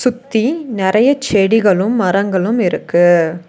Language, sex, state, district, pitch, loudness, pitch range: Tamil, female, Tamil Nadu, Nilgiris, 205 Hz, -14 LUFS, 185-235 Hz